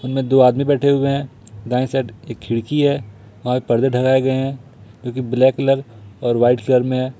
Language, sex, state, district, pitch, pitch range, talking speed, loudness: Hindi, male, Jharkhand, Ranchi, 130 Hz, 120-135 Hz, 190 wpm, -18 LUFS